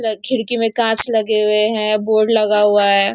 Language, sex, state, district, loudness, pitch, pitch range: Hindi, female, Maharashtra, Nagpur, -14 LUFS, 215 Hz, 210-225 Hz